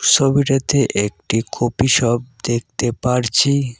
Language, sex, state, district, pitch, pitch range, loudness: Bengali, male, West Bengal, Cooch Behar, 125 Hz, 120-135 Hz, -17 LUFS